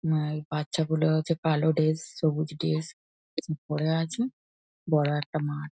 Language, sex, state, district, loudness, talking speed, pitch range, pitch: Bengali, female, West Bengal, North 24 Parganas, -28 LUFS, 155 wpm, 150-160 Hz, 155 Hz